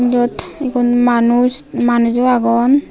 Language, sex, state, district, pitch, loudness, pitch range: Chakma, female, Tripura, Unakoti, 245 Hz, -14 LUFS, 240-255 Hz